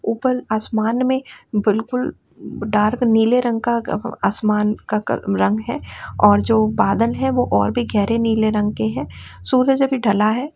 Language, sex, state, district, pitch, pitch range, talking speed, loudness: Hindi, female, Uttar Pradesh, Etah, 225 Hz, 210-250 Hz, 160 wpm, -19 LUFS